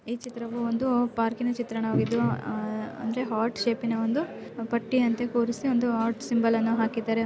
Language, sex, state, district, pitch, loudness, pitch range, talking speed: Kannada, female, Karnataka, Chamarajanagar, 230 Hz, -27 LUFS, 225-240 Hz, 140 wpm